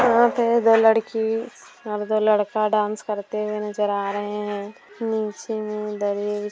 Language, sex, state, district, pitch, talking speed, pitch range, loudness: Hindi, female, Bihar, Saran, 215 Hz, 145 wpm, 210-225 Hz, -22 LUFS